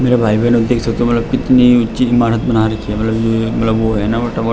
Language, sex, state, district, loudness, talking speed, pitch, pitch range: Hindi, male, Uttarakhand, Tehri Garhwal, -14 LUFS, 225 wpm, 115 Hz, 110-120 Hz